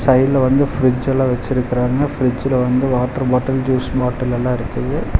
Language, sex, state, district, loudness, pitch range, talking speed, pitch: Tamil, male, Tamil Nadu, Chennai, -17 LUFS, 125-130 Hz, 125 wpm, 130 Hz